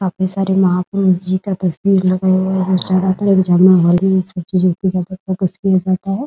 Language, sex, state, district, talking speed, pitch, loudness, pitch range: Hindi, female, Bihar, Muzaffarpur, 135 wpm, 185 Hz, -15 LUFS, 185-190 Hz